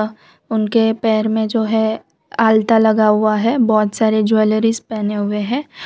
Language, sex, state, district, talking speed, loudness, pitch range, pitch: Hindi, female, Gujarat, Valsad, 155 wpm, -16 LUFS, 215-225 Hz, 220 Hz